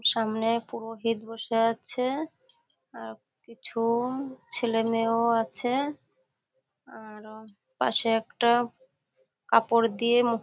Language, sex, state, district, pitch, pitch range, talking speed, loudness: Bengali, female, West Bengal, Kolkata, 230 Hz, 225-250 Hz, 80 wpm, -25 LUFS